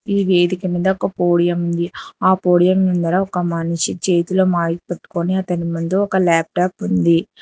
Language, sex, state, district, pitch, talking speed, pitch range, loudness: Telugu, female, Telangana, Hyderabad, 175 Hz, 145 wpm, 170-190 Hz, -17 LUFS